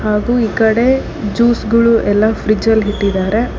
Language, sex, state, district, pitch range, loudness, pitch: Kannada, female, Karnataka, Bangalore, 210-235 Hz, -13 LUFS, 220 Hz